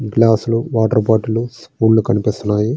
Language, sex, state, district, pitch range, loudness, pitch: Telugu, male, Andhra Pradesh, Srikakulam, 110-115 Hz, -16 LUFS, 110 Hz